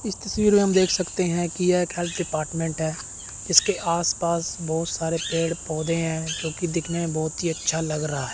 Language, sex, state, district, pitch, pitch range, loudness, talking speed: Hindi, male, Chandigarh, Chandigarh, 170 Hz, 160-175 Hz, -24 LUFS, 210 wpm